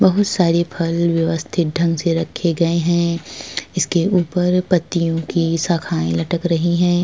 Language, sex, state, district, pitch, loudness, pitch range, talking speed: Hindi, female, Uttar Pradesh, Jalaun, 170 Hz, -18 LUFS, 165-175 Hz, 145 wpm